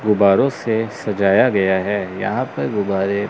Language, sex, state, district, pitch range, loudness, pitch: Hindi, male, Chandigarh, Chandigarh, 95-105 Hz, -18 LUFS, 100 Hz